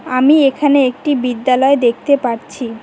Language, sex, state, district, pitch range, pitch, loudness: Bengali, female, West Bengal, Cooch Behar, 245-280 Hz, 260 Hz, -13 LUFS